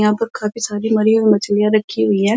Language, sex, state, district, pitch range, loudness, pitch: Hindi, female, Uttar Pradesh, Muzaffarnagar, 205-220 Hz, -16 LUFS, 210 Hz